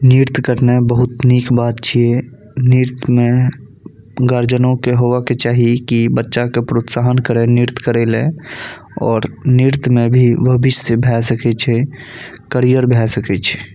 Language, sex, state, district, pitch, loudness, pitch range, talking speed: Maithili, male, Bihar, Saharsa, 125 Hz, -14 LUFS, 120-125 Hz, 140 wpm